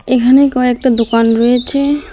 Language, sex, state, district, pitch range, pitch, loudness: Bengali, female, West Bengal, Alipurduar, 240-280 Hz, 250 Hz, -11 LUFS